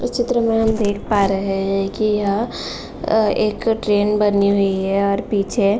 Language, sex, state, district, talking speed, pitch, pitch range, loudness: Hindi, female, Uttar Pradesh, Gorakhpur, 195 wpm, 205 Hz, 200-220 Hz, -18 LUFS